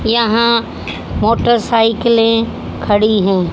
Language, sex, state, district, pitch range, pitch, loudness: Hindi, female, Haryana, Jhajjar, 215-235 Hz, 225 Hz, -14 LUFS